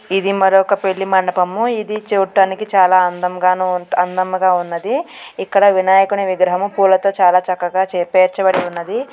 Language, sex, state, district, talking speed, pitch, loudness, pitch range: Telugu, female, Andhra Pradesh, Guntur, 125 wpm, 190 Hz, -15 LUFS, 180-195 Hz